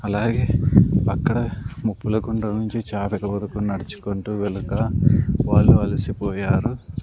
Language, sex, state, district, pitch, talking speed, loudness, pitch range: Telugu, male, Andhra Pradesh, Sri Satya Sai, 105 Hz, 100 wpm, -21 LUFS, 100-115 Hz